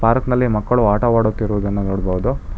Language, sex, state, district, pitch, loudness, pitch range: Kannada, male, Karnataka, Bangalore, 110 Hz, -18 LUFS, 100-120 Hz